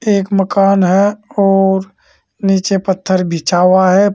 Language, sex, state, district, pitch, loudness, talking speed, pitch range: Hindi, male, Uttar Pradesh, Saharanpur, 195 Hz, -13 LUFS, 130 wpm, 185-200 Hz